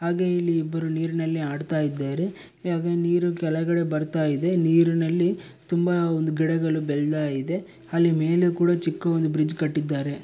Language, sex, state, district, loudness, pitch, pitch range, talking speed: Kannada, male, Karnataka, Bellary, -24 LUFS, 165 Hz, 155-170 Hz, 150 wpm